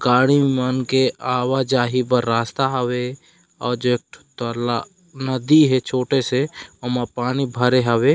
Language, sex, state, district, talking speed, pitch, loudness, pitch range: Chhattisgarhi, male, Chhattisgarh, Raigarh, 155 wpm, 125 Hz, -20 LUFS, 125-135 Hz